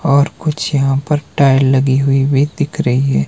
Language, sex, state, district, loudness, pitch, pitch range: Hindi, male, Himachal Pradesh, Shimla, -14 LUFS, 140 Hz, 135-150 Hz